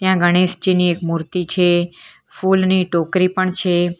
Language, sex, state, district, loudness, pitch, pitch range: Gujarati, female, Gujarat, Valsad, -17 LUFS, 180 Hz, 175-185 Hz